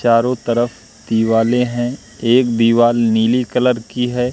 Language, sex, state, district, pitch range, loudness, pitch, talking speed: Hindi, male, Madhya Pradesh, Katni, 115-125 Hz, -16 LUFS, 120 Hz, 140 wpm